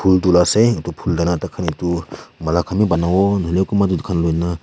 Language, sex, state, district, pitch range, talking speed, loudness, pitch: Nagamese, male, Nagaland, Kohima, 85-95 Hz, 260 wpm, -18 LUFS, 90 Hz